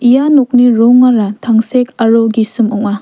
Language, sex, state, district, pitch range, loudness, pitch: Garo, female, Meghalaya, West Garo Hills, 225-250 Hz, -10 LUFS, 230 Hz